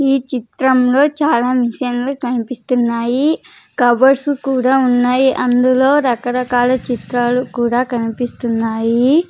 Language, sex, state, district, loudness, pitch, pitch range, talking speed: Telugu, female, Andhra Pradesh, Sri Satya Sai, -15 LUFS, 250 Hz, 245-265 Hz, 85 wpm